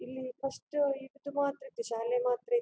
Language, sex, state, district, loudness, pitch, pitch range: Kannada, female, Karnataka, Dakshina Kannada, -34 LUFS, 275 Hz, 260-295 Hz